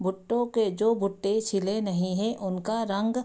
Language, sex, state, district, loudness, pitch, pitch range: Hindi, female, Bihar, Sitamarhi, -27 LUFS, 205 Hz, 195-225 Hz